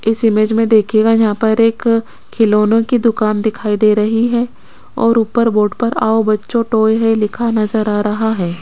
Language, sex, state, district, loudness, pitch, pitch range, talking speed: Hindi, female, Rajasthan, Jaipur, -14 LUFS, 220 Hz, 215-230 Hz, 190 wpm